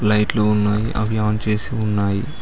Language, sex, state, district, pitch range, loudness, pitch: Telugu, male, Telangana, Mahabubabad, 105-110 Hz, -20 LUFS, 105 Hz